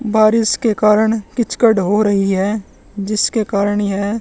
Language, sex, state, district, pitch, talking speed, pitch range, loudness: Hindi, male, Haryana, Charkhi Dadri, 210 Hz, 140 wpm, 200-220 Hz, -15 LUFS